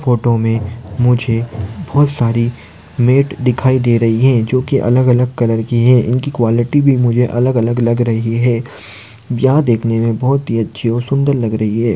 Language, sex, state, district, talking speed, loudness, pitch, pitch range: Hindi, male, Maharashtra, Aurangabad, 170 wpm, -14 LUFS, 120 Hz, 115-130 Hz